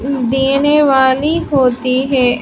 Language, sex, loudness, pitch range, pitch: Hindi, female, -13 LUFS, 255-280 Hz, 265 Hz